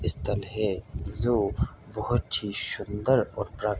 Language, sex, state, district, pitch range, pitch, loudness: Hindi, male, Bihar, Bhagalpur, 95-110 Hz, 105 Hz, -28 LUFS